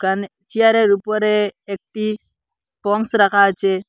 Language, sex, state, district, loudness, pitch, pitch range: Bengali, male, Assam, Hailakandi, -17 LUFS, 205 Hz, 195-215 Hz